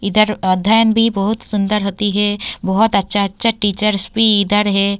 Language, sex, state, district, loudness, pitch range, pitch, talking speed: Hindi, female, Uttar Pradesh, Varanasi, -15 LUFS, 200-215 Hz, 205 Hz, 155 wpm